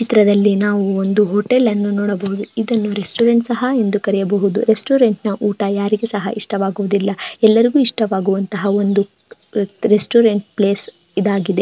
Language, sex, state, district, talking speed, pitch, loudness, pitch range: Kannada, female, Karnataka, Dharwad, 120 wpm, 205 Hz, -16 LUFS, 200-220 Hz